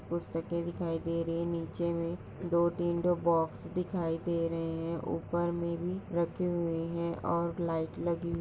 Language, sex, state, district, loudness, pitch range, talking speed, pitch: Hindi, female, Chhattisgarh, Sarguja, -33 LUFS, 165-170 Hz, 165 wpm, 170 Hz